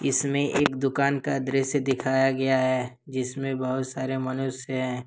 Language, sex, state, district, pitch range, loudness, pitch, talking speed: Hindi, male, Jharkhand, Ranchi, 130-135 Hz, -26 LUFS, 135 Hz, 155 wpm